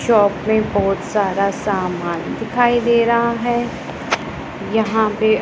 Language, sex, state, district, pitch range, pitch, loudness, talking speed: Hindi, female, Punjab, Pathankot, 200-235 Hz, 215 Hz, -18 LUFS, 120 wpm